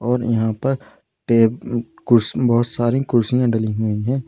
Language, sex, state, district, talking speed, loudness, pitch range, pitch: Hindi, male, Uttar Pradesh, Lalitpur, 140 wpm, -18 LUFS, 110-125 Hz, 120 Hz